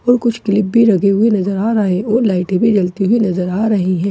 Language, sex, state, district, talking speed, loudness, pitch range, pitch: Hindi, female, Bihar, Katihar, 275 wpm, -14 LUFS, 190-225 Hz, 205 Hz